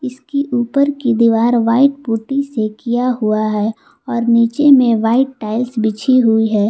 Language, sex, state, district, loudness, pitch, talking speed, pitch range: Hindi, female, Jharkhand, Palamu, -15 LUFS, 235 Hz, 160 wpm, 225-265 Hz